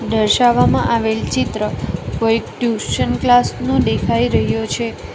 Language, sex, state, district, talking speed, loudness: Gujarati, female, Gujarat, Valsad, 115 wpm, -17 LUFS